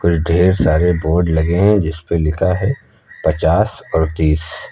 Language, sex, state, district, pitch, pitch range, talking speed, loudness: Hindi, male, Uttar Pradesh, Lucknow, 85 Hz, 80-90 Hz, 150 wpm, -16 LUFS